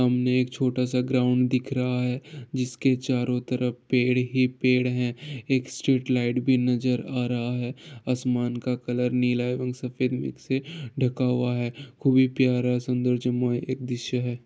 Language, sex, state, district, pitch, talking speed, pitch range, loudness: Hindi, male, Bihar, Gopalganj, 125 Hz, 175 wpm, 125-130 Hz, -25 LUFS